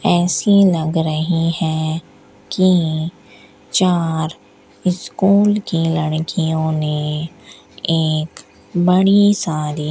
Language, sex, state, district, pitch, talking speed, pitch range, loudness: Hindi, female, Rajasthan, Bikaner, 160 Hz, 85 wpm, 155-180 Hz, -17 LUFS